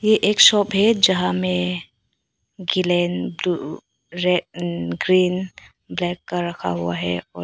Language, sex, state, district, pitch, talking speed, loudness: Hindi, female, Arunachal Pradesh, Papum Pare, 175 Hz, 115 wpm, -20 LUFS